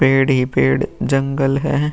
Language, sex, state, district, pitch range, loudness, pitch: Hindi, male, Uttar Pradesh, Muzaffarnagar, 130-140 Hz, -17 LUFS, 135 Hz